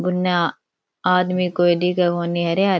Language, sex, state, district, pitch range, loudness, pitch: Rajasthani, female, Rajasthan, Churu, 175-180 Hz, -19 LUFS, 180 Hz